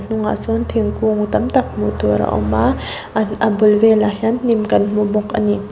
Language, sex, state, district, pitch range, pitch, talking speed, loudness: Mizo, female, Mizoram, Aizawl, 205-225 Hz, 215 Hz, 220 wpm, -16 LUFS